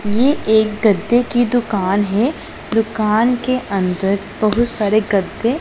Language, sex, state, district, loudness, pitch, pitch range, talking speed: Hindi, female, Punjab, Pathankot, -17 LUFS, 220 Hz, 205-240 Hz, 130 wpm